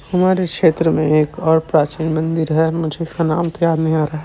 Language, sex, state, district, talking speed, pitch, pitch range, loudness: Chhattisgarhi, male, Chhattisgarh, Sarguja, 225 wpm, 160 Hz, 155-165 Hz, -17 LUFS